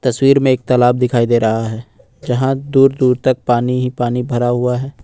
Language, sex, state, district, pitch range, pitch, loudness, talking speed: Hindi, male, Jharkhand, Ranchi, 120-130 Hz, 125 Hz, -15 LUFS, 215 wpm